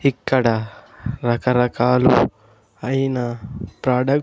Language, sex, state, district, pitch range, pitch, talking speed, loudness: Telugu, male, Andhra Pradesh, Sri Satya Sai, 120-130 Hz, 125 Hz, 70 wpm, -19 LUFS